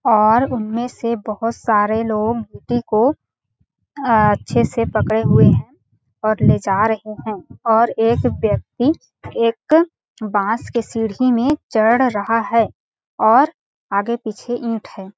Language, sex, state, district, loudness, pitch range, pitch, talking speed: Hindi, female, Chhattisgarh, Balrampur, -18 LUFS, 215-240 Hz, 230 Hz, 140 wpm